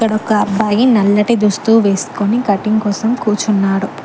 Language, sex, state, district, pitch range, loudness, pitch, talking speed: Telugu, female, Telangana, Mahabubabad, 200-225 Hz, -14 LUFS, 210 Hz, 135 wpm